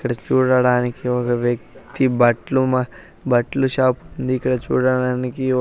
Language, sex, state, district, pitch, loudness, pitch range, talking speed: Telugu, male, Andhra Pradesh, Sri Satya Sai, 125 Hz, -19 LUFS, 125-130 Hz, 105 wpm